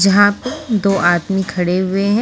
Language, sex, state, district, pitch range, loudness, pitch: Hindi, female, Haryana, Jhajjar, 185-205 Hz, -16 LUFS, 195 Hz